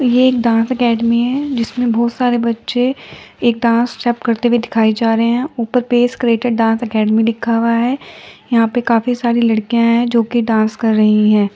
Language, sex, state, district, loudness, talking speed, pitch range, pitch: Hindi, female, Uttar Pradesh, Muzaffarnagar, -15 LUFS, 185 wpm, 225-245 Hz, 235 Hz